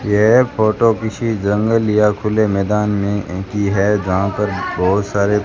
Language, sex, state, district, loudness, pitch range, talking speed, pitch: Hindi, male, Rajasthan, Bikaner, -16 LUFS, 100-110 Hz, 165 wpm, 105 Hz